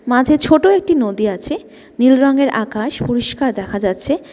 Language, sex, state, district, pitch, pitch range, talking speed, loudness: Bengali, female, West Bengal, Alipurduar, 255 Hz, 215-290 Hz, 150 wpm, -15 LUFS